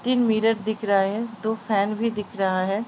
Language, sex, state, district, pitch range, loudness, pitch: Hindi, female, Uttar Pradesh, Ghazipur, 200-225 Hz, -24 LUFS, 220 Hz